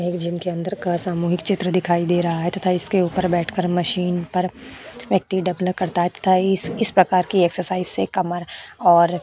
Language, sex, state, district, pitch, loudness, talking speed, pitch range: Hindi, female, Uttar Pradesh, Budaun, 180 Hz, -20 LUFS, 180 wpm, 175-185 Hz